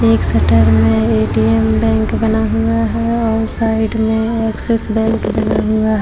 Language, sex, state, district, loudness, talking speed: Hindi, female, Maharashtra, Chandrapur, -14 LUFS, 160 wpm